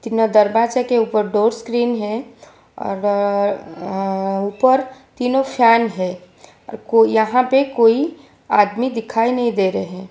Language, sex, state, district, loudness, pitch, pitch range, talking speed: Hindi, female, Gujarat, Valsad, -17 LUFS, 225 Hz, 205-245 Hz, 150 wpm